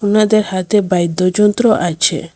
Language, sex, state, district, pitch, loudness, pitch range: Bengali, female, Assam, Hailakandi, 200 Hz, -14 LUFS, 180-215 Hz